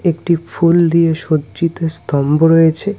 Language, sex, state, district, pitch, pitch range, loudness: Bengali, male, West Bengal, Cooch Behar, 165 Hz, 160-170 Hz, -14 LUFS